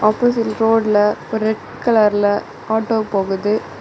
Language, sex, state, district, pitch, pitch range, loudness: Tamil, female, Tamil Nadu, Kanyakumari, 215 Hz, 205-225 Hz, -17 LUFS